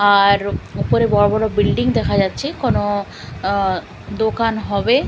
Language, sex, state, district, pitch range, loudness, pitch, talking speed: Bengali, female, Bihar, Katihar, 200-220 Hz, -18 LUFS, 205 Hz, 130 wpm